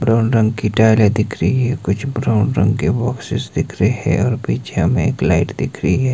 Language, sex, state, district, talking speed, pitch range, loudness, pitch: Hindi, male, Himachal Pradesh, Shimla, 225 wpm, 105-125 Hz, -17 LUFS, 115 Hz